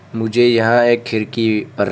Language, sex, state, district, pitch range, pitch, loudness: Hindi, male, Arunachal Pradesh, Papum Pare, 110-120 Hz, 115 Hz, -15 LUFS